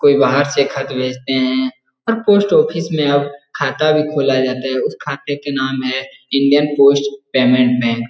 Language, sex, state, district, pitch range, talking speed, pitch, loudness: Hindi, male, Bihar, Jahanabad, 130-145 Hz, 190 wpm, 140 Hz, -16 LUFS